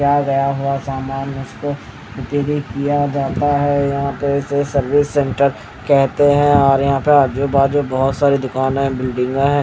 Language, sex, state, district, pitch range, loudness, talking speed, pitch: Hindi, male, Haryana, Rohtak, 135-145 Hz, -17 LUFS, 145 wpm, 140 Hz